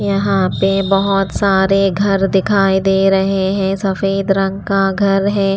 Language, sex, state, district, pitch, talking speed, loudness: Hindi, female, Punjab, Pathankot, 195 Hz, 150 wpm, -15 LUFS